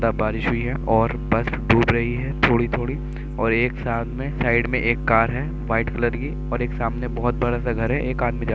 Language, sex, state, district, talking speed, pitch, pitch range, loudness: Hindi, male, Uttar Pradesh, Jyotiba Phule Nagar, 210 wpm, 120 Hz, 115-130 Hz, -22 LUFS